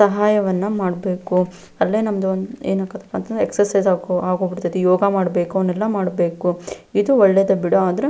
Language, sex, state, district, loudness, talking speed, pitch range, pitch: Kannada, female, Karnataka, Belgaum, -19 LUFS, 125 wpm, 180-205 Hz, 190 Hz